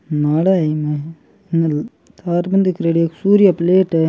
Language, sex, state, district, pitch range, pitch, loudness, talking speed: Marwari, male, Rajasthan, Churu, 155-185 Hz, 165 Hz, -16 LUFS, 160 wpm